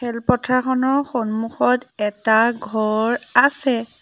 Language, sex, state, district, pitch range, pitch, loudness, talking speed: Assamese, female, Assam, Sonitpur, 220-255 Hz, 240 Hz, -19 LUFS, 90 wpm